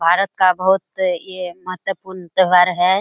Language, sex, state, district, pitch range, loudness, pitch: Hindi, female, Bihar, Kishanganj, 180-190 Hz, -17 LUFS, 185 Hz